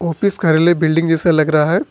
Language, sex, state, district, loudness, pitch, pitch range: Hindi, male, Jharkhand, Ranchi, -14 LUFS, 165 Hz, 160-175 Hz